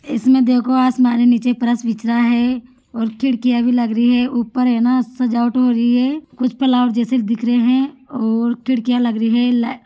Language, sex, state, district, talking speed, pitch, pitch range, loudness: Hindi, female, Rajasthan, Churu, 205 wpm, 245 Hz, 235-255 Hz, -16 LUFS